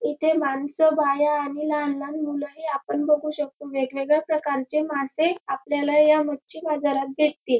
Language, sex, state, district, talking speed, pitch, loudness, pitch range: Marathi, female, Maharashtra, Dhule, 150 wpm, 295 Hz, -23 LUFS, 280-305 Hz